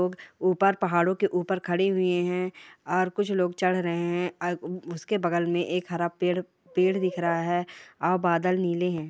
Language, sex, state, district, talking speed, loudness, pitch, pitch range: Hindi, female, Chhattisgarh, Sarguja, 185 wpm, -27 LUFS, 180 Hz, 175-185 Hz